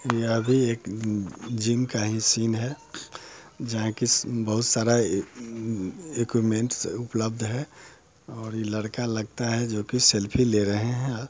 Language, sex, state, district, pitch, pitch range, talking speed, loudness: Hindi, male, Bihar, Muzaffarpur, 115 Hz, 110-120 Hz, 145 wpm, -25 LUFS